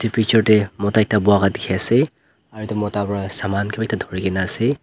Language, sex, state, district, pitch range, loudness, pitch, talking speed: Nagamese, male, Nagaland, Dimapur, 100-110 Hz, -19 LUFS, 105 Hz, 175 wpm